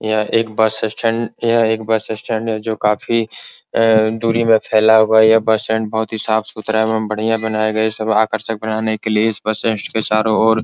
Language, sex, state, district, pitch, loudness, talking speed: Hindi, male, Bihar, Supaul, 110 Hz, -16 LUFS, 225 wpm